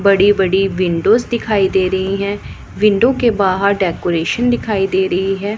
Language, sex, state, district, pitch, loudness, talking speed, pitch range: Hindi, male, Punjab, Pathankot, 195 Hz, -15 LUFS, 160 wpm, 190-210 Hz